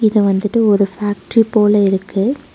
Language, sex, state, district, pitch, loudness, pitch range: Tamil, female, Tamil Nadu, Nilgiris, 210 Hz, -15 LUFS, 200-220 Hz